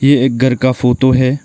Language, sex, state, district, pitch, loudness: Hindi, male, Arunachal Pradesh, Lower Dibang Valley, 130 Hz, -12 LUFS